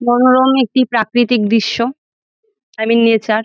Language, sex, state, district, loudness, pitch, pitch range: Bengali, female, West Bengal, Jalpaiguri, -13 LUFS, 240 Hz, 225-260 Hz